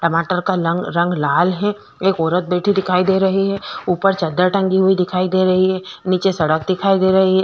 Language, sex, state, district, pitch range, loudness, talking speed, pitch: Hindi, female, Chhattisgarh, Korba, 180-190 Hz, -17 LUFS, 220 wpm, 185 Hz